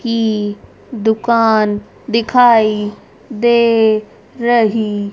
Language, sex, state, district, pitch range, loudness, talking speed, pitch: Hindi, female, Haryana, Rohtak, 215-235 Hz, -14 LUFS, 60 wpm, 225 Hz